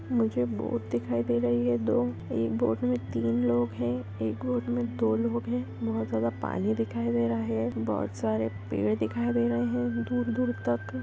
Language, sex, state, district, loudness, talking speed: Hindi, female, Andhra Pradesh, Visakhapatnam, -29 LUFS, 200 wpm